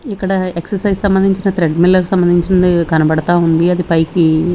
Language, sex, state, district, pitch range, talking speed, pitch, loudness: Telugu, female, Andhra Pradesh, Sri Satya Sai, 170-190 Hz, 130 wpm, 175 Hz, -13 LUFS